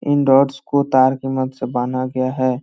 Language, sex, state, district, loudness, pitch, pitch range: Hindi, male, Bihar, Samastipur, -18 LUFS, 130 Hz, 130-135 Hz